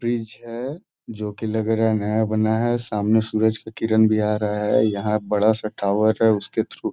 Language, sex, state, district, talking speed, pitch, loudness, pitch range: Hindi, male, Bihar, Gopalganj, 225 wpm, 110 Hz, -21 LUFS, 105-110 Hz